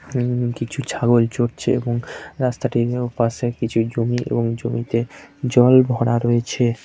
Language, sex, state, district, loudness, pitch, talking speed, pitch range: Bengali, male, West Bengal, Purulia, -20 LUFS, 120 Hz, 130 wpm, 115-125 Hz